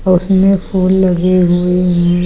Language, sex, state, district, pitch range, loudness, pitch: Hindi, female, Uttar Pradesh, Lucknow, 180-190 Hz, -12 LUFS, 185 Hz